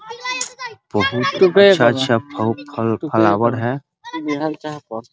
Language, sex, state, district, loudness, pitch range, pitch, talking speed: Hindi, male, Bihar, Muzaffarpur, -17 LUFS, 120-195 Hz, 145 Hz, 95 wpm